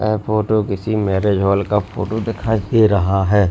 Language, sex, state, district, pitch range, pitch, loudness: Hindi, male, Uttar Pradesh, Lalitpur, 100-110 Hz, 105 Hz, -17 LUFS